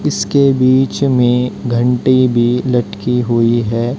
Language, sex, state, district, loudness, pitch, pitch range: Hindi, male, Haryana, Jhajjar, -13 LUFS, 125 Hz, 120-130 Hz